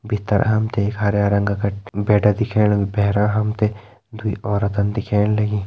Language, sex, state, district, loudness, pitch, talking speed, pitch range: Hindi, male, Uttarakhand, Tehri Garhwal, -19 LUFS, 105 Hz, 180 wpm, 100-105 Hz